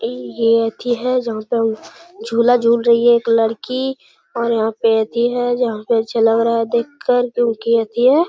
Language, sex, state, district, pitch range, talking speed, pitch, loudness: Hindi, male, Bihar, Gaya, 225-245 Hz, 195 wpm, 235 Hz, -17 LUFS